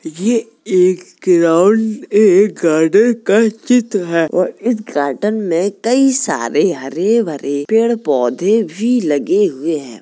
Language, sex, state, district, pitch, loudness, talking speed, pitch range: Hindi, female, Uttar Pradesh, Jalaun, 210 Hz, -14 LUFS, 120 wpm, 170-230 Hz